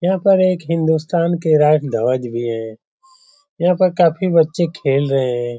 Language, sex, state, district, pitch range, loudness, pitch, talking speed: Hindi, male, Bihar, Saran, 135-180 Hz, -16 LUFS, 165 Hz, 170 wpm